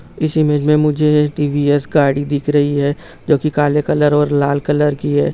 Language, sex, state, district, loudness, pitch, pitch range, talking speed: Hindi, male, Bihar, Jamui, -15 LUFS, 145 Hz, 145-150 Hz, 215 wpm